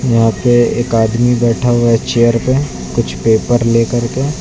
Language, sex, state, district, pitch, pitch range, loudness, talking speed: Hindi, male, Uttar Pradesh, Lucknow, 120 Hz, 115-120 Hz, -13 LUFS, 175 wpm